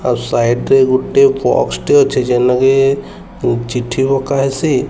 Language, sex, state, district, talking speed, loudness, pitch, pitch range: Odia, female, Odisha, Sambalpur, 110 wpm, -13 LUFS, 135 Hz, 125-160 Hz